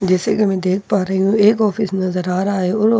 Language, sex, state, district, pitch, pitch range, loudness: Hindi, female, Bihar, Katihar, 195 Hz, 185-210 Hz, -17 LUFS